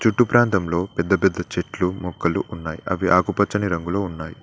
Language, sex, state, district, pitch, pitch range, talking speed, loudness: Telugu, male, Telangana, Mahabubabad, 90 Hz, 85-100 Hz, 150 wpm, -21 LUFS